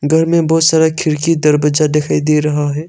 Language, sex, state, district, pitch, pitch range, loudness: Hindi, male, Arunachal Pradesh, Longding, 155 Hz, 150-160 Hz, -13 LUFS